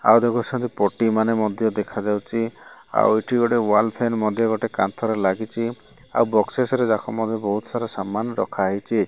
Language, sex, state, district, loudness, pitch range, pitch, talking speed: Odia, male, Odisha, Malkangiri, -22 LUFS, 105-115 Hz, 110 Hz, 150 wpm